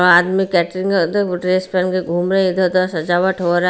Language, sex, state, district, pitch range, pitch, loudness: Hindi, female, Bihar, Patna, 175-190 Hz, 185 Hz, -17 LUFS